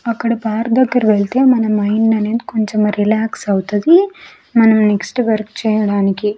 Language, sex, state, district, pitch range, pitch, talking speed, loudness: Telugu, female, Andhra Pradesh, Sri Satya Sai, 210-230 Hz, 220 Hz, 130 wpm, -15 LUFS